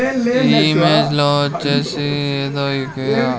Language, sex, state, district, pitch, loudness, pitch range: Telugu, male, Andhra Pradesh, Sri Satya Sai, 140 Hz, -16 LUFS, 135-145 Hz